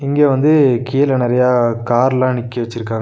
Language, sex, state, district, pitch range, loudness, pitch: Tamil, male, Tamil Nadu, Nilgiris, 120-135 Hz, -15 LUFS, 125 Hz